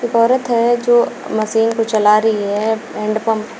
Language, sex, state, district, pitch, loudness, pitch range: Hindi, female, Uttar Pradesh, Shamli, 225 Hz, -16 LUFS, 215-235 Hz